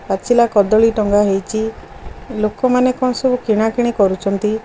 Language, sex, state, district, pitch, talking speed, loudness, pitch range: Odia, female, Odisha, Khordha, 220 Hz, 115 wpm, -16 LUFS, 205-240 Hz